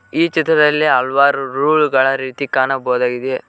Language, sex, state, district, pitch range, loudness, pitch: Kannada, male, Karnataka, Koppal, 130-150 Hz, -15 LUFS, 135 Hz